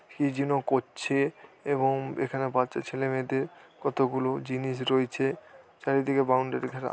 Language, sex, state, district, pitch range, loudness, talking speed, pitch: Bengali, male, West Bengal, Dakshin Dinajpur, 130-135 Hz, -29 LUFS, 120 wpm, 135 Hz